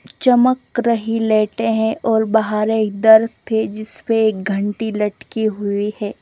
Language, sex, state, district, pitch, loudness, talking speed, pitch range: Hindi, female, Chandigarh, Chandigarh, 220 Hz, -17 LUFS, 135 wpm, 210-225 Hz